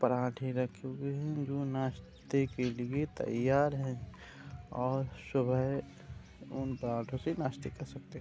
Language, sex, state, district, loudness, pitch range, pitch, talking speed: Hindi, male, Uttar Pradesh, Deoria, -35 LUFS, 125-140 Hz, 130 Hz, 140 wpm